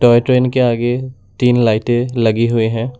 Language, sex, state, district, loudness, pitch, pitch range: Hindi, male, Assam, Sonitpur, -15 LUFS, 120 Hz, 115-125 Hz